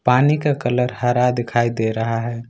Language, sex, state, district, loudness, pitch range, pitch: Hindi, male, Jharkhand, Ranchi, -19 LUFS, 115-125 Hz, 120 Hz